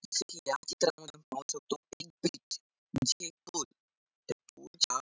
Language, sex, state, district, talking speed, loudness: Marathi, male, Maharashtra, Sindhudurg, 180 wpm, -35 LUFS